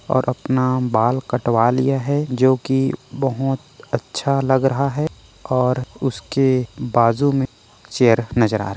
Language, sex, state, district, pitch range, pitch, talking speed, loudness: Chhattisgarhi, male, Chhattisgarh, Korba, 120-135 Hz, 130 Hz, 145 wpm, -19 LUFS